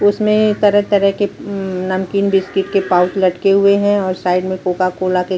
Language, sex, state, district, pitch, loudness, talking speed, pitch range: Hindi, female, Chhattisgarh, Balrampur, 195 Hz, -15 LUFS, 225 wpm, 185-200 Hz